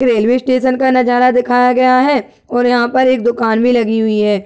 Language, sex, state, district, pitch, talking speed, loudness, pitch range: Hindi, male, Uttar Pradesh, Ghazipur, 245 Hz, 215 wpm, -12 LUFS, 235-255 Hz